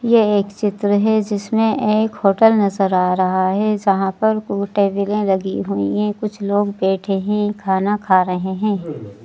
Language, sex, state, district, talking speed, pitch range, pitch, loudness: Hindi, female, Madhya Pradesh, Bhopal, 170 wpm, 190-210 Hz, 200 Hz, -18 LUFS